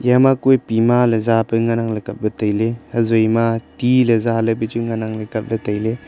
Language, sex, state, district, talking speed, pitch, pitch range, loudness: Wancho, male, Arunachal Pradesh, Longding, 185 wpm, 115 Hz, 110-120 Hz, -17 LUFS